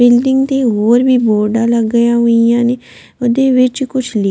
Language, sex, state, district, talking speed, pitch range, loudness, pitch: Punjabi, female, Delhi, New Delhi, 180 wpm, 230-255 Hz, -12 LUFS, 240 Hz